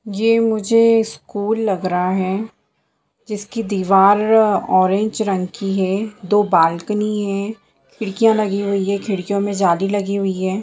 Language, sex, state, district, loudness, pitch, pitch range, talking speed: Hindi, female, Jharkhand, Sahebganj, -17 LUFS, 200 Hz, 195-215 Hz, 140 wpm